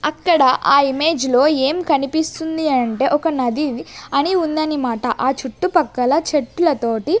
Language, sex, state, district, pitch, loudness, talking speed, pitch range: Telugu, female, Andhra Pradesh, Sri Satya Sai, 290 Hz, -17 LUFS, 135 wpm, 260-320 Hz